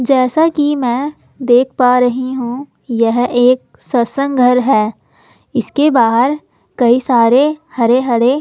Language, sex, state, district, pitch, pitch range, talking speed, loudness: Hindi, female, Delhi, New Delhi, 250 Hz, 240-275 Hz, 130 wpm, -13 LUFS